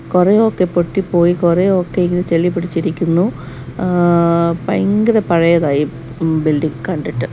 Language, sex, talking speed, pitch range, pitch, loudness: Malayalam, female, 90 wpm, 165-185 Hz, 175 Hz, -15 LUFS